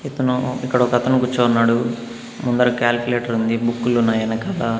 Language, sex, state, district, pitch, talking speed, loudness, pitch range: Telugu, male, Andhra Pradesh, Annamaya, 120 Hz, 125 wpm, -19 LUFS, 115-125 Hz